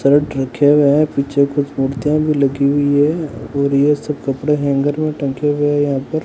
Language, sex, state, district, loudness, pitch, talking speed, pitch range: Hindi, male, Rajasthan, Bikaner, -16 LUFS, 145 Hz, 210 wpm, 140-150 Hz